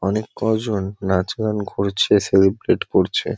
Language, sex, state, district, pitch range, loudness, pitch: Bengali, male, West Bengal, Kolkata, 95-110 Hz, -19 LUFS, 100 Hz